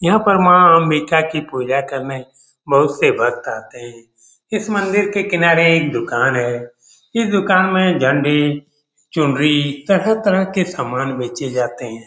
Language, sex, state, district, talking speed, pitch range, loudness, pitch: Hindi, male, Bihar, Saran, 155 wpm, 130-185 Hz, -16 LUFS, 150 Hz